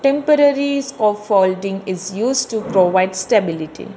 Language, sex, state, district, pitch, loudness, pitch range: English, female, Telangana, Hyderabad, 210 Hz, -17 LUFS, 185-270 Hz